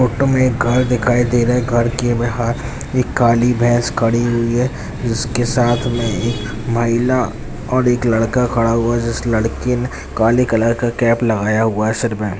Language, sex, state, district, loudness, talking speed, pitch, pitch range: Hindi, male, Bihar, Jamui, -16 LUFS, 195 wpm, 120 Hz, 115-125 Hz